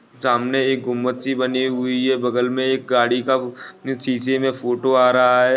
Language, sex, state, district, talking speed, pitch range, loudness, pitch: Hindi, male, Chhattisgarh, Bastar, 195 wpm, 125-130 Hz, -19 LUFS, 125 Hz